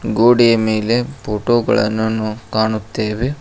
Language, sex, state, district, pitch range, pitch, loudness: Kannada, male, Karnataka, Koppal, 110-120 Hz, 110 Hz, -16 LUFS